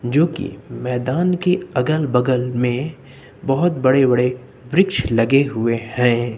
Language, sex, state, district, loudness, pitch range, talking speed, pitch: Hindi, male, Uttar Pradesh, Lucknow, -18 LUFS, 125-150 Hz, 130 wpm, 130 Hz